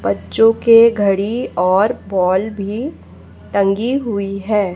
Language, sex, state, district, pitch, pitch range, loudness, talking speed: Hindi, female, Chhattisgarh, Raipur, 205 Hz, 195-230 Hz, -16 LUFS, 115 wpm